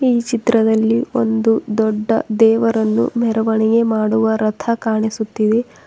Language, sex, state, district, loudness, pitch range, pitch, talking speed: Kannada, female, Karnataka, Bidar, -16 LUFS, 220-230 Hz, 225 Hz, 90 wpm